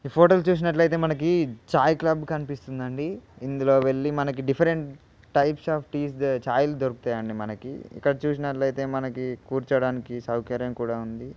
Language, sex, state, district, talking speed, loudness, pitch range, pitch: Telugu, male, Telangana, Nalgonda, 150 wpm, -25 LUFS, 125-155 Hz, 135 Hz